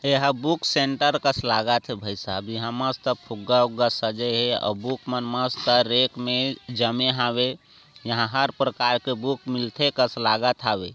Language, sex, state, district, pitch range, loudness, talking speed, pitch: Chhattisgarhi, male, Chhattisgarh, Raigarh, 120-130 Hz, -23 LUFS, 165 wpm, 125 Hz